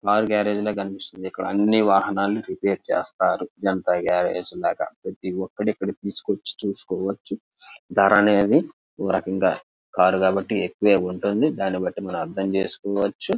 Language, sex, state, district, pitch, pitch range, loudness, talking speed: Telugu, male, Andhra Pradesh, Krishna, 100 Hz, 95-105 Hz, -23 LUFS, 105 wpm